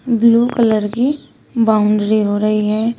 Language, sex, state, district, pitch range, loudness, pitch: Hindi, female, Uttar Pradesh, Shamli, 215-235 Hz, -15 LUFS, 220 Hz